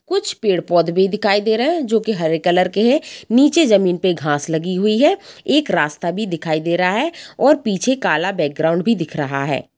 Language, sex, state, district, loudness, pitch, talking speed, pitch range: Hindi, female, Jharkhand, Sahebganj, -17 LUFS, 190 Hz, 215 wpm, 165-230 Hz